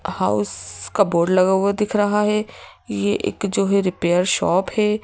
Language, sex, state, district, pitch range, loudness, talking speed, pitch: Hindi, female, Madhya Pradesh, Bhopal, 170-205 Hz, -19 LUFS, 180 wpm, 190 Hz